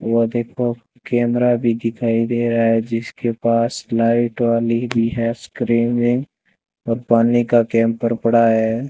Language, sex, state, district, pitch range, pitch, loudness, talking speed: Hindi, male, Rajasthan, Bikaner, 115-120 Hz, 115 Hz, -18 LUFS, 140 wpm